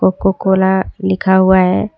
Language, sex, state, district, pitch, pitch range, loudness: Hindi, female, Jharkhand, Deoghar, 190 Hz, 185-190 Hz, -13 LUFS